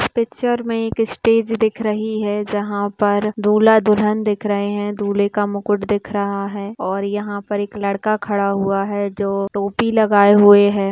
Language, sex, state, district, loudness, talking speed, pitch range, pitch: Hindi, female, Rajasthan, Churu, -18 LUFS, 170 wpm, 200-215 Hz, 205 Hz